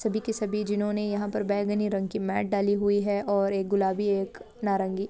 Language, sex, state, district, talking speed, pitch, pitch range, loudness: Hindi, female, Goa, North and South Goa, 165 wpm, 205 Hz, 195-210 Hz, -27 LUFS